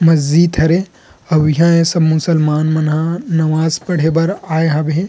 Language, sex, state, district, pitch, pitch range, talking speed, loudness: Chhattisgarhi, male, Chhattisgarh, Rajnandgaon, 160 Hz, 155-170 Hz, 165 wpm, -14 LUFS